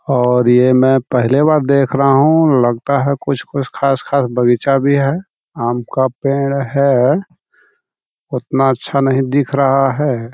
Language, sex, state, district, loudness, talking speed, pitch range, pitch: Hindi, male, Bihar, Jamui, -14 LUFS, 145 wpm, 125-140 Hz, 135 Hz